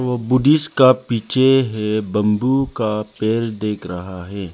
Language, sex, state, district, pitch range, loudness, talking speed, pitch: Hindi, male, Arunachal Pradesh, Lower Dibang Valley, 105-130 Hz, -18 LUFS, 145 wpm, 110 Hz